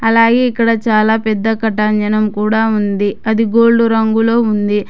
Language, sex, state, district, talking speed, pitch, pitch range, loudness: Telugu, female, Telangana, Hyderabad, 135 wpm, 220 Hz, 215-230 Hz, -13 LUFS